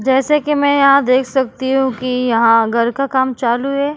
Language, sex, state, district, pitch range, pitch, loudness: Hindi, female, Uttar Pradesh, Jyotiba Phule Nagar, 250-275 Hz, 260 Hz, -14 LUFS